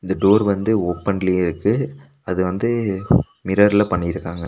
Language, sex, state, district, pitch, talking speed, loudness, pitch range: Tamil, male, Tamil Nadu, Nilgiris, 95 Hz, 120 wpm, -19 LUFS, 90-110 Hz